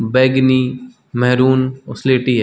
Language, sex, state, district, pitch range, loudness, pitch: Hindi, male, Chhattisgarh, Balrampur, 125-130 Hz, -15 LUFS, 130 Hz